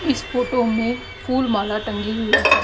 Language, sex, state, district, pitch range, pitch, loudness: Hindi, female, Haryana, Rohtak, 215-250 Hz, 230 Hz, -21 LUFS